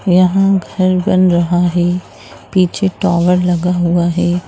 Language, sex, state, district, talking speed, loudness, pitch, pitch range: Hindi, female, Bihar, Jamui, 145 wpm, -13 LUFS, 180 Hz, 175-185 Hz